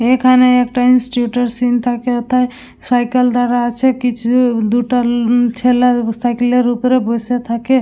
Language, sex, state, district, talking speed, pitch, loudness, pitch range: Bengali, female, West Bengal, Dakshin Dinajpur, 125 wpm, 245 Hz, -14 LUFS, 240-250 Hz